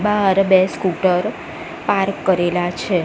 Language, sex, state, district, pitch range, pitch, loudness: Gujarati, female, Gujarat, Gandhinagar, 180-195 Hz, 190 Hz, -18 LUFS